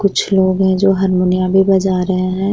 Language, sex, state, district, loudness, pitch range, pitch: Hindi, female, Bihar, Vaishali, -14 LUFS, 185-195 Hz, 190 Hz